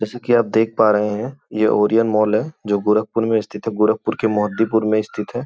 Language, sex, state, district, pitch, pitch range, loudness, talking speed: Hindi, male, Uttar Pradesh, Gorakhpur, 110 Hz, 105-115 Hz, -18 LUFS, 240 wpm